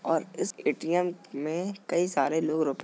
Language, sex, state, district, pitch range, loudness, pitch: Hindi, male, Uttar Pradesh, Jalaun, 155-175 Hz, -29 LUFS, 160 Hz